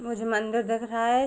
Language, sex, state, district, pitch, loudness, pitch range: Hindi, female, Jharkhand, Sahebganj, 230 Hz, -27 LUFS, 225-235 Hz